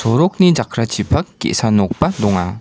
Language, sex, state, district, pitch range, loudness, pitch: Garo, male, Meghalaya, West Garo Hills, 100-140 Hz, -16 LUFS, 115 Hz